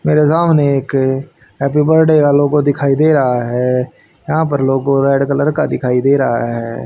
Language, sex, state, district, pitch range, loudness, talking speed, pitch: Hindi, male, Haryana, Rohtak, 130-150 Hz, -13 LUFS, 185 wpm, 140 Hz